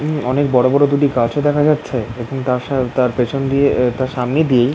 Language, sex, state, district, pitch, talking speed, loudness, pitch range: Bengali, male, West Bengal, Dakshin Dinajpur, 130 Hz, 225 wpm, -16 LUFS, 125-145 Hz